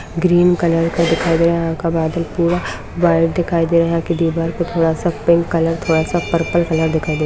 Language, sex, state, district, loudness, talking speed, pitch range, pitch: Hindi, female, Bihar, Madhepura, -16 LUFS, 240 wpm, 165-170 Hz, 165 Hz